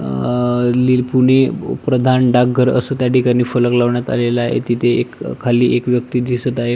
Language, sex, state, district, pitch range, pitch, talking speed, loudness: Marathi, male, Maharashtra, Pune, 120-125 Hz, 125 Hz, 160 wpm, -15 LUFS